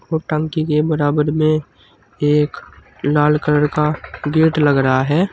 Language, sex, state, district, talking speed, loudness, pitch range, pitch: Hindi, male, Uttar Pradesh, Saharanpur, 145 wpm, -17 LUFS, 145-155 Hz, 150 Hz